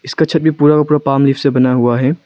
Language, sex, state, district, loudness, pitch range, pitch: Hindi, male, Arunachal Pradesh, Lower Dibang Valley, -12 LUFS, 130-150 Hz, 140 Hz